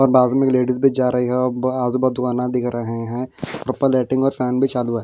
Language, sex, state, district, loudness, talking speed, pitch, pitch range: Hindi, male, Delhi, New Delhi, -19 LUFS, 260 wpm, 125 Hz, 125-130 Hz